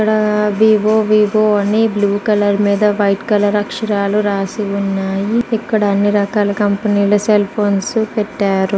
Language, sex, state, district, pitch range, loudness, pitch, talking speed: Telugu, female, Andhra Pradesh, Guntur, 200-215 Hz, -15 LUFS, 205 Hz, 135 wpm